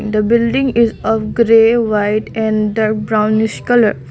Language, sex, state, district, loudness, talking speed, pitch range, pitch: English, female, Assam, Kamrup Metropolitan, -14 LUFS, 145 wpm, 215-235 Hz, 220 Hz